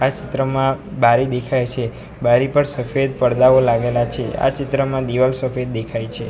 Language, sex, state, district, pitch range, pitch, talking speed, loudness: Gujarati, male, Gujarat, Valsad, 120-135 Hz, 130 Hz, 160 wpm, -18 LUFS